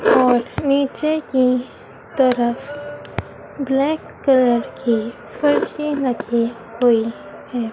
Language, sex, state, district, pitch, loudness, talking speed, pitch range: Hindi, female, Madhya Pradesh, Dhar, 255 Hz, -19 LUFS, 85 wpm, 235-290 Hz